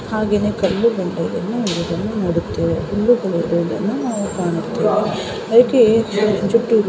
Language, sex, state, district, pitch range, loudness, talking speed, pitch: Kannada, female, Karnataka, Belgaum, 180-225 Hz, -18 LUFS, 105 wpm, 210 Hz